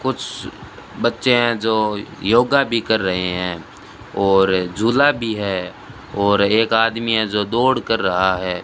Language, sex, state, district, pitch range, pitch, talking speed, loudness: Hindi, male, Rajasthan, Bikaner, 95-115 Hz, 110 Hz, 155 wpm, -18 LUFS